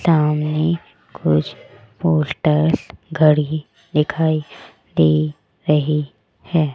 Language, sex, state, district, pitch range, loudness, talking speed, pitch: Hindi, female, Rajasthan, Jaipur, 145-155 Hz, -19 LUFS, 80 wpm, 150 Hz